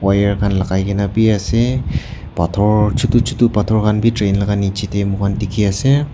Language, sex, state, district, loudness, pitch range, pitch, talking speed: Nagamese, male, Nagaland, Kohima, -16 LUFS, 100-110 Hz, 100 Hz, 195 wpm